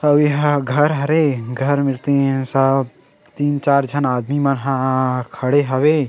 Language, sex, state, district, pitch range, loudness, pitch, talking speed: Chhattisgarhi, male, Chhattisgarh, Sarguja, 130-145 Hz, -17 LUFS, 140 Hz, 155 wpm